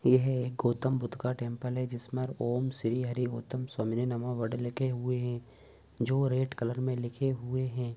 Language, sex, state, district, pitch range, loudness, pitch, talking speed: Bhojpuri, male, Bihar, Saran, 120-130 Hz, -32 LUFS, 125 Hz, 190 wpm